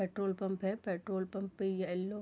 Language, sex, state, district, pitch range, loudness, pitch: Hindi, female, Bihar, Sitamarhi, 190-195 Hz, -37 LUFS, 195 Hz